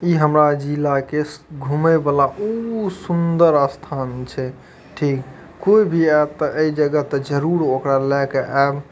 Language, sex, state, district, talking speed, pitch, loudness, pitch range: Maithili, male, Bihar, Madhepura, 155 wpm, 150 Hz, -18 LUFS, 140-165 Hz